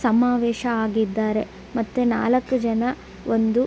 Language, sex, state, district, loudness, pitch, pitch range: Kannada, female, Karnataka, Belgaum, -22 LUFS, 235 Hz, 225-245 Hz